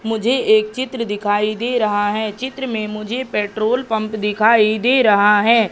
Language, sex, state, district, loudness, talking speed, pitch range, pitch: Hindi, female, Madhya Pradesh, Katni, -17 LUFS, 170 wpm, 210-235 Hz, 220 Hz